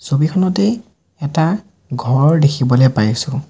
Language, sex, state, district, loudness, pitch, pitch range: Assamese, male, Assam, Sonitpur, -15 LUFS, 145 Hz, 130-185 Hz